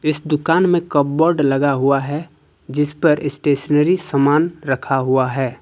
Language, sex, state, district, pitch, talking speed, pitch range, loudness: Hindi, male, Jharkhand, Ranchi, 145 Hz, 150 wpm, 140-155 Hz, -17 LUFS